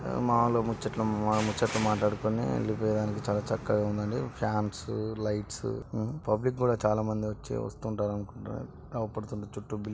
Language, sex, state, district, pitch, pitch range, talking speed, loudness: Telugu, male, Andhra Pradesh, Srikakulam, 110 Hz, 105-115 Hz, 140 wpm, -31 LUFS